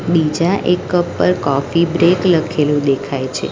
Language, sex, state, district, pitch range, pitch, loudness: Gujarati, female, Gujarat, Valsad, 135-175 Hz, 160 Hz, -15 LUFS